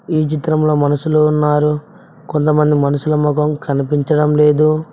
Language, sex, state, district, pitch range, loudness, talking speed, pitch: Telugu, male, Telangana, Mahabubabad, 150-155 Hz, -15 LUFS, 120 wpm, 150 Hz